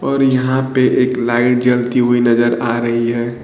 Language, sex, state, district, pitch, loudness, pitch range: Hindi, male, Bihar, Kaimur, 120 Hz, -15 LUFS, 120-130 Hz